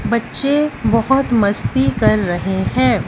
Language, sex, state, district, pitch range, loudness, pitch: Hindi, female, Punjab, Fazilka, 190-270 Hz, -16 LUFS, 225 Hz